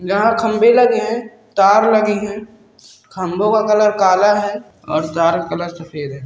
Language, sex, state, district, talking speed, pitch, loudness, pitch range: Hindi, female, Bihar, Saran, 165 wpm, 210 Hz, -15 LUFS, 185-220 Hz